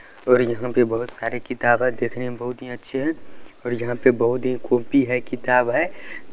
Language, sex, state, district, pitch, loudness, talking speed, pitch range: Maithili, male, Bihar, Supaul, 125 Hz, -22 LUFS, 210 wpm, 120-125 Hz